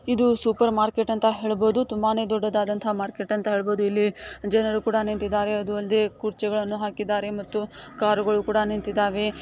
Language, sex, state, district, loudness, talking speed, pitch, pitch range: Kannada, female, Karnataka, Dakshina Kannada, -24 LUFS, 145 wpm, 210 Hz, 210-220 Hz